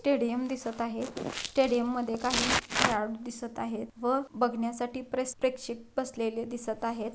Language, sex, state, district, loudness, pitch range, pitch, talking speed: Marathi, female, Maharashtra, Nagpur, -31 LUFS, 230-255 Hz, 240 Hz, 135 wpm